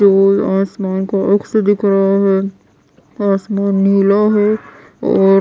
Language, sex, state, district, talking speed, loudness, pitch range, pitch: Hindi, female, Bihar, West Champaran, 110 wpm, -14 LUFS, 195-205 Hz, 200 Hz